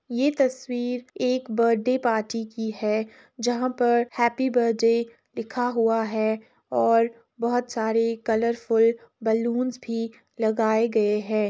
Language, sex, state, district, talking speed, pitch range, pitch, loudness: Hindi, female, Uttar Pradesh, Etah, 120 wpm, 225-245 Hz, 230 Hz, -24 LUFS